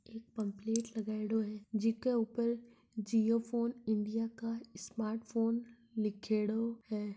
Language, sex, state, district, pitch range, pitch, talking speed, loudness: Marwari, male, Rajasthan, Nagaur, 215-230 Hz, 225 Hz, 125 wpm, -36 LUFS